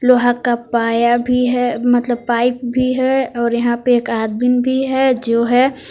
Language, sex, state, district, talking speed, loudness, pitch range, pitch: Hindi, female, Jharkhand, Palamu, 185 wpm, -16 LUFS, 235-250 Hz, 245 Hz